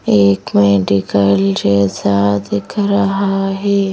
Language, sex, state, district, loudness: Hindi, female, Madhya Pradesh, Bhopal, -14 LUFS